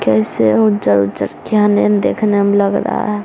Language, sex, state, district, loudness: Hindi, female, Bihar, Samastipur, -14 LUFS